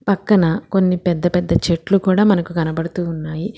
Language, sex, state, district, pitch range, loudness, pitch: Telugu, female, Telangana, Hyderabad, 165-195 Hz, -17 LUFS, 175 Hz